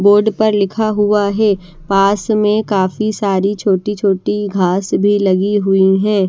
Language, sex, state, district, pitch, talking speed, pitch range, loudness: Hindi, female, Haryana, Charkhi Dadri, 205 Hz, 150 wpm, 195-210 Hz, -14 LUFS